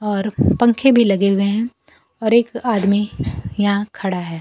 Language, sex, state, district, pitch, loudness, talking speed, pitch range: Hindi, female, Bihar, Kaimur, 205 Hz, -17 LUFS, 165 wpm, 195-230 Hz